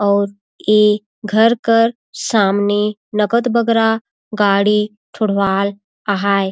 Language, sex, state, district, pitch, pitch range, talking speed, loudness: Surgujia, female, Chhattisgarh, Sarguja, 210 Hz, 200-225 Hz, 90 wpm, -16 LUFS